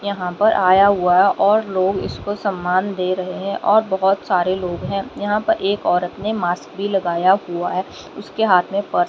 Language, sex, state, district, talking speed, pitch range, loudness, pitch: Hindi, female, Haryana, Rohtak, 205 wpm, 180-205 Hz, -18 LUFS, 195 Hz